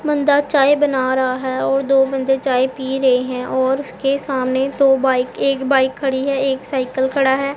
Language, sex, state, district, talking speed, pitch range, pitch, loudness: Hindi, female, Punjab, Pathankot, 200 wpm, 260-275 Hz, 265 Hz, -17 LUFS